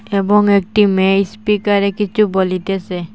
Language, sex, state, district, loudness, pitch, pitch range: Bengali, female, Assam, Hailakandi, -15 LUFS, 200 Hz, 190-210 Hz